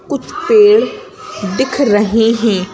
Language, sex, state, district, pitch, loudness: Hindi, female, Madhya Pradesh, Bhopal, 260 Hz, -12 LUFS